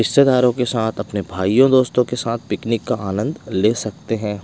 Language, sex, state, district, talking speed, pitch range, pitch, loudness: Hindi, male, Odisha, Malkangiri, 190 wpm, 105-125 Hz, 115 Hz, -18 LUFS